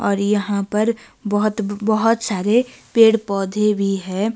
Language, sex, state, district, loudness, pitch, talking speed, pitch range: Hindi, female, Himachal Pradesh, Shimla, -19 LUFS, 210 Hz, 140 wpm, 200-220 Hz